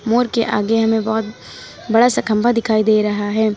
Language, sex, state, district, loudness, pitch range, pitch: Hindi, female, Uttar Pradesh, Lucknow, -16 LUFS, 215-230 Hz, 220 Hz